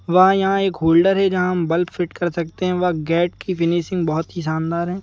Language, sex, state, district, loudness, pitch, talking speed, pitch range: Hindi, male, Madhya Pradesh, Bhopal, -19 LUFS, 175 Hz, 225 wpm, 170-185 Hz